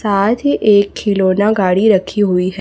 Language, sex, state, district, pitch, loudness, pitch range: Hindi, female, Chhattisgarh, Raipur, 200 Hz, -13 LUFS, 190-210 Hz